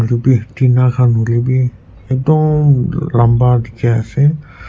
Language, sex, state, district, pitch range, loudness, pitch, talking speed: Nagamese, male, Nagaland, Kohima, 115-135 Hz, -13 LUFS, 125 Hz, 115 wpm